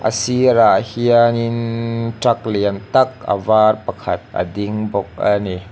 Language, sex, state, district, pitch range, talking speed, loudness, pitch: Mizo, male, Mizoram, Aizawl, 100-120 Hz, 135 wpm, -17 LUFS, 110 Hz